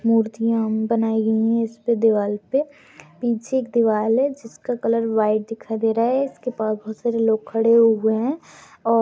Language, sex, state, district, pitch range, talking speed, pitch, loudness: Hindi, female, Goa, North and South Goa, 220-235 Hz, 185 wpm, 225 Hz, -21 LUFS